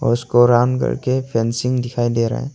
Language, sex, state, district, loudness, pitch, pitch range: Hindi, male, Arunachal Pradesh, Longding, -18 LUFS, 120 Hz, 120-125 Hz